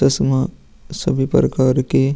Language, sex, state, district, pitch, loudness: Hindi, male, Bihar, Vaishali, 130 Hz, -18 LUFS